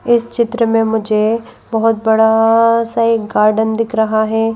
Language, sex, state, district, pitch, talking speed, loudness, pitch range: Hindi, female, Madhya Pradesh, Bhopal, 225 Hz, 160 wpm, -14 LUFS, 220-230 Hz